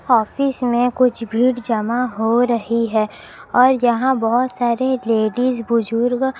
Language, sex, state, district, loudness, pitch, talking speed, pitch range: Hindi, female, Chhattisgarh, Raipur, -18 LUFS, 240 Hz, 130 wpm, 230-255 Hz